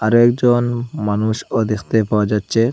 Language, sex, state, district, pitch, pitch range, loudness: Bengali, male, Assam, Hailakandi, 115 Hz, 105-120 Hz, -17 LUFS